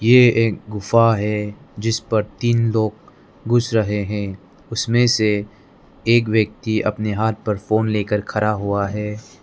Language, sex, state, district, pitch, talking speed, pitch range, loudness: Hindi, male, Arunachal Pradesh, Lower Dibang Valley, 110 Hz, 145 wpm, 105-115 Hz, -19 LUFS